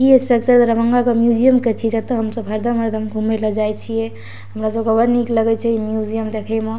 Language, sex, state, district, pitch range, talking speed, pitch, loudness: Maithili, female, Bihar, Darbhanga, 215-235 Hz, 240 wpm, 225 Hz, -17 LUFS